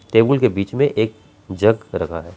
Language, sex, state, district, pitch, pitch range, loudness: Hindi, male, Bihar, Gaya, 110 Hz, 100-115 Hz, -18 LUFS